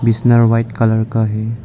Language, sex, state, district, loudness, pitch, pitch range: Hindi, male, Arunachal Pradesh, Lower Dibang Valley, -14 LUFS, 115 Hz, 110-115 Hz